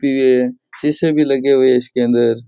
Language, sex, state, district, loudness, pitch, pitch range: Rajasthani, male, Rajasthan, Churu, -15 LUFS, 130 Hz, 125-140 Hz